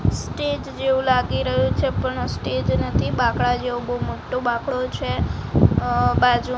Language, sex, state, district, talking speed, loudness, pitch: Gujarati, female, Gujarat, Gandhinagar, 145 wpm, -21 LUFS, 240 Hz